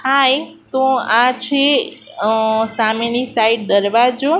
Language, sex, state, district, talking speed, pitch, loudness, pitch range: Gujarati, female, Gujarat, Gandhinagar, 95 wpm, 245 Hz, -15 LUFS, 220-265 Hz